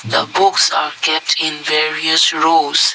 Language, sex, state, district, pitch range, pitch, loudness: English, male, Assam, Kamrup Metropolitan, 155-185 Hz, 160 Hz, -14 LUFS